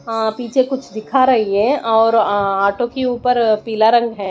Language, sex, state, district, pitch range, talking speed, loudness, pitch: Hindi, female, Odisha, Malkangiri, 215-250 Hz, 195 wpm, -16 LUFS, 225 Hz